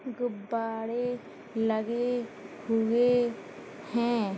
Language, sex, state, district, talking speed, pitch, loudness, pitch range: Hindi, female, Uttar Pradesh, Hamirpur, 55 wpm, 235 Hz, -30 LUFS, 225-245 Hz